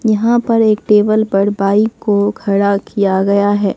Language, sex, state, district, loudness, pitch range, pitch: Hindi, female, Bihar, Katihar, -13 LUFS, 200-220 Hz, 205 Hz